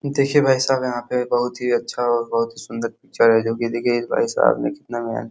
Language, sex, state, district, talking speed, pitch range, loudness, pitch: Hindi, male, Uttar Pradesh, Hamirpur, 215 wpm, 115-130 Hz, -20 LUFS, 120 Hz